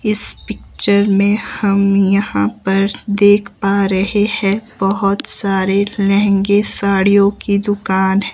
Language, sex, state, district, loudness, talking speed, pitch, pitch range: Hindi, female, Himachal Pradesh, Shimla, -14 LUFS, 115 wpm, 200 Hz, 195-205 Hz